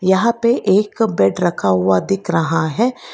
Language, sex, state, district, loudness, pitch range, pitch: Hindi, female, Karnataka, Bangalore, -16 LUFS, 160-230 Hz, 190 Hz